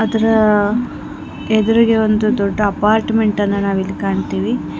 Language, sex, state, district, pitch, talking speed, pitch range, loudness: Kannada, female, Karnataka, Bangalore, 215 Hz, 110 wpm, 200-220 Hz, -15 LUFS